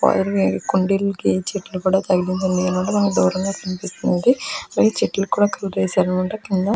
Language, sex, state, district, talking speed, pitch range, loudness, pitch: Telugu, female, Andhra Pradesh, Krishna, 150 wpm, 185-200 Hz, -20 LUFS, 190 Hz